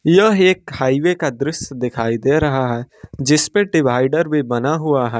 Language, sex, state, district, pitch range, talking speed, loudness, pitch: Hindi, male, Jharkhand, Ranchi, 125-160 Hz, 185 wpm, -17 LUFS, 145 Hz